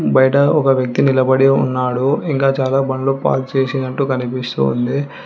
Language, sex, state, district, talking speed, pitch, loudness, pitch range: Telugu, female, Telangana, Hyderabad, 135 wpm, 135 Hz, -16 LUFS, 130-135 Hz